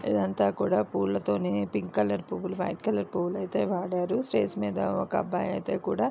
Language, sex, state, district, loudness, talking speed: Telugu, female, Andhra Pradesh, Visakhapatnam, -29 LUFS, 175 wpm